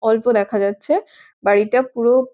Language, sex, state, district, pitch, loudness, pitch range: Bengali, female, West Bengal, Jhargram, 235 Hz, -18 LUFS, 205-255 Hz